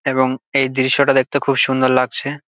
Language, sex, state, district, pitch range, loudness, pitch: Bengali, male, West Bengal, Jalpaiguri, 130-140 Hz, -16 LUFS, 130 Hz